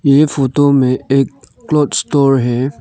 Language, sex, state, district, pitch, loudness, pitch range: Hindi, male, Arunachal Pradesh, Lower Dibang Valley, 135 Hz, -13 LUFS, 130-145 Hz